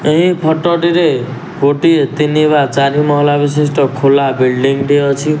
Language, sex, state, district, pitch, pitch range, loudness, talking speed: Odia, male, Odisha, Nuapada, 145 Hz, 140-160 Hz, -12 LUFS, 145 wpm